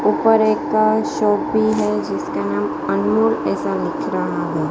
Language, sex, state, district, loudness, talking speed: Hindi, female, Gujarat, Gandhinagar, -18 LUFS, 165 wpm